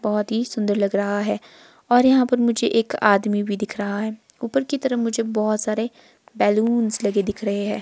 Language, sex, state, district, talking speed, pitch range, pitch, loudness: Hindi, female, Himachal Pradesh, Shimla, 215 wpm, 205-235 Hz, 215 Hz, -21 LUFS